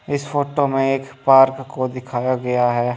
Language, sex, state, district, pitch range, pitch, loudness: Hindi, male, Delhi, New Delhi, 125-135 Hz, 135 Hz, -18 LUFS